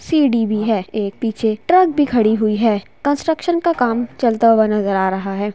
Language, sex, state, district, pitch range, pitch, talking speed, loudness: Hindi, female, Bihar, Jahanabad, 215-280 Hz, 225 Hz, 215 wpm, -17 LUFS